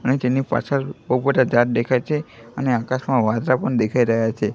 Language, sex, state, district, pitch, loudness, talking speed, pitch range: Gujarati, male, Gujarat, Gandhinagar, 125 Hz, -20 LUFS, 200 wpm, 115-130 Hz